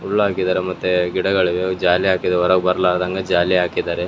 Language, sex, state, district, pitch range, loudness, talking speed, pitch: Kannada, male, Karnataka, Raichur, 90-95 Hz, -18 LUFS, 130 wpm, 90 Hz